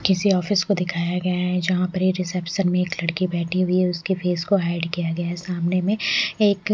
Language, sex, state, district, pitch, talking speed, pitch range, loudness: Hindi, female, Odisha, Malkangiri, 180 Hz, 215 wpm, 175-190 Hz, -22 LUFS